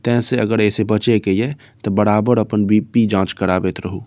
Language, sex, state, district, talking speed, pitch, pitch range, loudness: Maithili, male, Bihar, Saharsa, 220 wpm, 105 Hz, 95-115 Hz, -17 LUFS